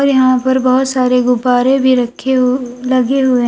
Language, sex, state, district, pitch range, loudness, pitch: Hindi, female, Uttar Pradesh, Lalitpur, 250-260 Hz, -13 LUFS, 255 Hz